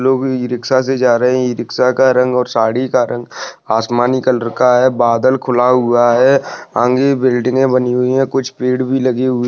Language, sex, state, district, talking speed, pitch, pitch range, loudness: Hindi, male, West Bengal, Dakshin Dinajpur, 195 wpm, 125 Hz, 120-130 Hz, -14 LUFS